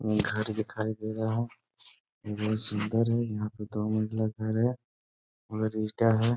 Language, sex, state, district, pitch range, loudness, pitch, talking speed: Hindi, male, Bihar, Sitamarhi, 105-110 Hz, -30 LUFS, 110 Hz, 170 wpm